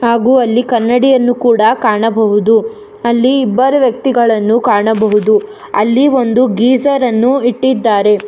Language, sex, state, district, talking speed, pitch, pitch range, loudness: Kannada, female, Karnataka, Bangalore, 100 wpm, 240 Hz, 220-260 Hz, -11 LUFS